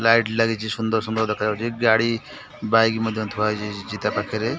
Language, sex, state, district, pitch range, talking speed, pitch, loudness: Odia, male, Odisha, Khordha, 105-115 Hz, 170 wpm, 110 Hz, -22 LUFS